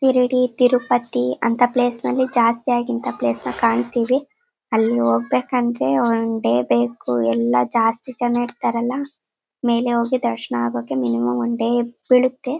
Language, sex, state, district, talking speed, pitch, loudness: Kannada, female, Karnataka, Bellary, 140 wpm, 235 Hz, -19 LUFS